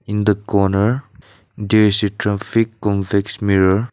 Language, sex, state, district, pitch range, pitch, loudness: English, male, Nagaland, Dimapur, 100-110 Hz, 105 Hz, -16 LUFS